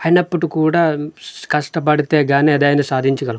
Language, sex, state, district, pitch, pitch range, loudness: Telugu, male, Andhra Pradesh, Manyam, 150 Hz, 145-165 Hz, -16 LUFS